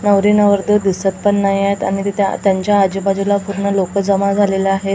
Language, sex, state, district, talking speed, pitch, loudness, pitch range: Marathi, female, Maharashtra, Gondia, 170 wpm, 200 Hz, -15 LUFS, 195-200 Hz